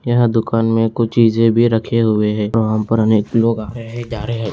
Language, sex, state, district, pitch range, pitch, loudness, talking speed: Hindi, male, Bihar, Saran, 110-115 Hz, 115 Hz, -16 LUFS, 250 wpm